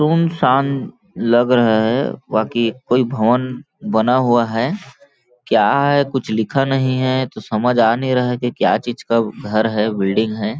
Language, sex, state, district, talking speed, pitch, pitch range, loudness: Hindi, male, Chhattisgarh, Balrampur, 180 wpm, 125 Hz, 110-130 Hz, -17 LUFS